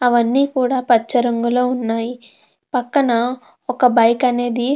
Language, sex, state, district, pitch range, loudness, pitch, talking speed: Telugu, female, Andhra Pradesh, Krishna, 235-255 Hz, -17 LUFS, 245 Hz, 140 wpm